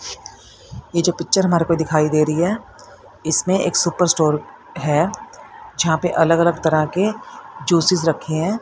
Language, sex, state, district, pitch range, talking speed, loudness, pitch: Hindi, female, Haryana, Charkhi Dadri, 160-190 Hz, 160 wpm, -18 LUFS, 170 Hz